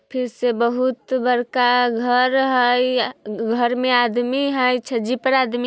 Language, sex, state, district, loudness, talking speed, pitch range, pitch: Bajjika, female, Bihar, Vaishali, -19 LUFS, 150 wpm, 240-255 Hz, 250 Hz